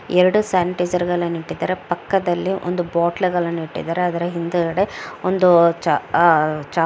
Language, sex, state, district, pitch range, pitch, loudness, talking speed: Kannada, female, Karnataka, Mysore, 170-180 Hz, 175 Hz, -19 LUFS, 120 wpm